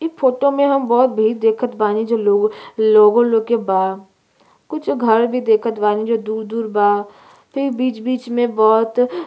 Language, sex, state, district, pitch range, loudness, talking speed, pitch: Bhojpuri, female, Uttar Pradesh, Ghazipur, 215-250 Hz, -16 LUFS, 180 wpm, 225 Hz